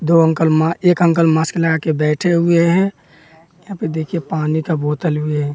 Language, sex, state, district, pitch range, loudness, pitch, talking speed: Hindi, male, Bihar, West Champaran, 155-170 Hz, -16 LUFS, 165 Hz, 205 wpm